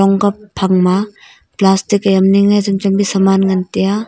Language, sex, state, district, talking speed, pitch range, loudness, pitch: Wancho, female, Arunachal Pradesh, Longding, 160 wpm, 190-200 Hz, -13 LUFS, 195 Hz